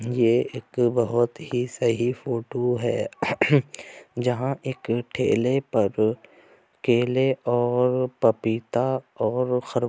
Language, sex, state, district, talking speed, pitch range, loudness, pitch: Hindi, male, Uttar Pradesh, Jyotiba Phule Nagar, 95 wpm, 120-130 Hz, -24 LUFS, 120 Hz